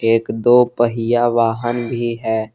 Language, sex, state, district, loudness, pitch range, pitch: Hindi, male, Jharkhand, Garhwa, -17 LUFS, 115-120 Hz, 120 Hz